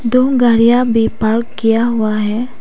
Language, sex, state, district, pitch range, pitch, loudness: Hindi, female, Arunachal Pradesh, Papum Pare, 225-245 Hz, 230 Hz, -13 LUFS